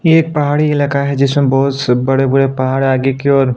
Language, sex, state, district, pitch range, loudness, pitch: Hindi, male, Uttarakhand, Tehri Garhwal, 135-145 Hz, -13 LUFS, 135 Hz